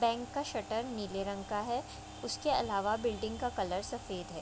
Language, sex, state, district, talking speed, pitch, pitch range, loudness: Hindi, female, Bihar, Vaishali, 190 wpm, 220 Hz, 200-240 Hz, -36 LUFS